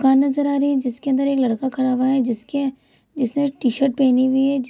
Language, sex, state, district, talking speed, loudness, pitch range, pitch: Hindi, female, Bihar, Kishanganj, 295 wpm, -20 LUFS, 255-275 Hz, 265 Hz